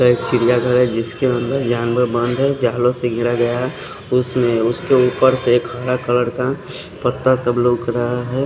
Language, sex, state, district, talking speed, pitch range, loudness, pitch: Hindi, male, Odisha, Khordha, 175 wpm, 120-125 Hz, -17 LUFS, 125 Hz